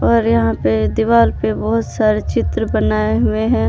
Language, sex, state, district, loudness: Hindi, male, Jharkhand, Palamu, -16 LUFS